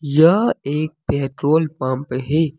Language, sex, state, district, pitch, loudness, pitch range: Hindi, male, Jharkhand, Deoghar, 150 Hz, -19 LUFS, 135-155 Hz